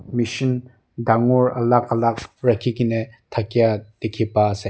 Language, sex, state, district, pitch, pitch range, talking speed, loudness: Nagamese, male, Nagaland, Dimapur, 115 Hz, 110-120 Hz, 125 wpm, -20 LUFS